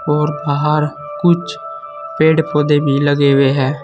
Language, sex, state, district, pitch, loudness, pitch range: Hindi, male, Uttar Pradesh, Saharanpur, 150 Hz, -15 LUFS, 145-155 Hz